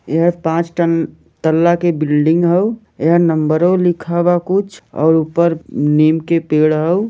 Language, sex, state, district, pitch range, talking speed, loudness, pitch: Bhojpuri, male, Jharkhand, Sahebganj, 160-175 Hz, 145 wpm, -15 LUFS, 165 Hz